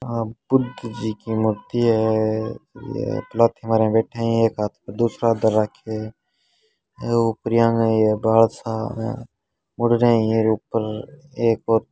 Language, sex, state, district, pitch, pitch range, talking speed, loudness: Hindi, male, Rajasthan, Churu, 115 Hz, 110-120 Hz, 100 wpm, -21 LUFS